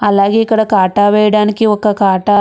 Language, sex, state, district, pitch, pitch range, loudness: Telugu, female, Andhra Pradesh, Krishna, 210 Hz, 205-215 Hz, -11 LUFS